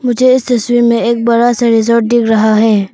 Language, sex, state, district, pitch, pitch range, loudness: Hindi, female, Arunachal Pradesh, Papum Pare, 235 Hz, 225-240 Hz, -10 LUFS